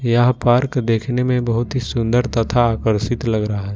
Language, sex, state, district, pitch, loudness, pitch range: Hindi, male, Jharkhand, Ranchi, 120 Hz, -18 LUFS, 115-125 Hz